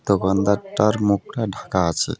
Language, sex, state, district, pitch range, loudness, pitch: Bengali, male, West Bengal, Alipurduar, 95-100 Hz, -21 LUFS, 100 Hz